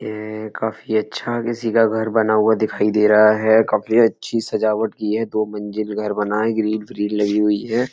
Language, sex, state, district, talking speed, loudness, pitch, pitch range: Hindi, male, Uttar Pradesh, Etah, 205 wpm, -19 LUFS, 110 Hz, 105-110 Hz